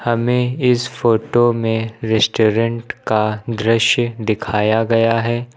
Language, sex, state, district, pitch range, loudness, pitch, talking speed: Hindi, male, Uttar Pradesh, Lucknow, 110-120 Hz, -17 LUFS, 115 Hz, 110 wpm